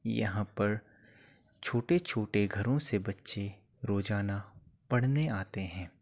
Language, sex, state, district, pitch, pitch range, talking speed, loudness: Hindi, male, Uttar Pradesh, Muzaffarnagar, 105 Hz, 100-125 Hz, 110 wpm, -33 LUFS